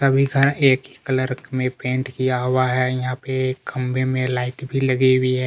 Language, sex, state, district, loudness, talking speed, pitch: Hindi, male, Chhattisgarh, Kabirdham, -20 LUFS, 210 wpm, 130 Hz